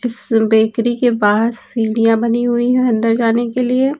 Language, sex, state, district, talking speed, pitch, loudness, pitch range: Hindi, female, Uttar Pradesh, Lucknow, 180 wpm, 235 Hz, -15 LUFS, 225-245 Hz